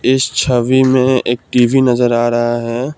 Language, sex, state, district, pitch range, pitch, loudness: Hindi, male, Assam, Kamrup Metropolitan, 120-130 Hz, 125 Hz, -13 LUFS